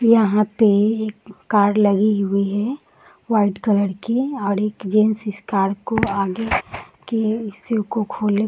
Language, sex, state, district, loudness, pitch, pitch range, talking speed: Hindi, female, Bihar, Saharsa, -20 LUFS, 210 Hz, 200-220 Hz, 155 wpm